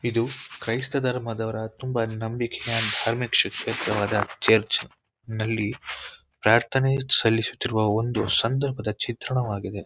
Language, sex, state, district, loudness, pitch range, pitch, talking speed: Kannada, male, Karnataka, Mysore, -24 LUFS, 110-125 Hz, 115 Hz, 80 wpm